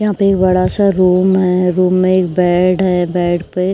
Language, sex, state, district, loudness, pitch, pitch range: Hindi, female, Uttar Pradesh, Jyotiba Phule Nagar, -13 LUFS, 185 Hz, 180-190 Hz